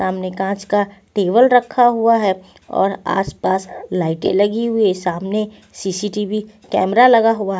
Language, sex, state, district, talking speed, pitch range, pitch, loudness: Hindi, female, Punjab, Pathankot, 150 wpm, 190-225 Hz, 200 Hz, -17 LUFS